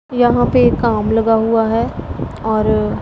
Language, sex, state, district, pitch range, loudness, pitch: Hindi, female, Punjab, Pathankot, 215-230 Hz, -15 LUFS, 225 Hz